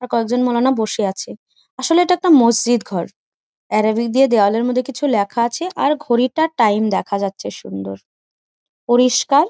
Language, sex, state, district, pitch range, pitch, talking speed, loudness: Bengali, female, West Bengal, Jhargram, 215-270 Hz, 240 Hz, 160 wpm, -17 LUFS